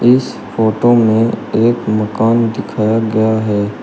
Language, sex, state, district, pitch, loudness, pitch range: Hindi, male, Uttar Pradesh, Shamli, 110 Hz, -14 LUFS, 110-115 Hz